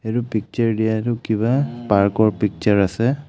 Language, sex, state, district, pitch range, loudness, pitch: Assamese, male, Assam, Kamrup Metropolitan, 105-120 Hz, -19 LUFS, 110 Hz